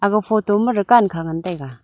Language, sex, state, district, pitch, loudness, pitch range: Wancho, female, Arunachal Pradesh, Longding, 205 Hz, -18 LUFS, 165-215 Hz